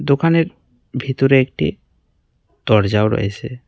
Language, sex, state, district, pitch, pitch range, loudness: Bengali, male, West Bengal, Cooch Behar, 125 Hz, 110-135 Hz, -17 LUFS